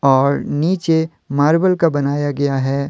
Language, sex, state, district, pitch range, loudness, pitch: Hindi, male, Jharkhand, Deoghar, 140-165 Hz, -17 LUFS, 145 Hz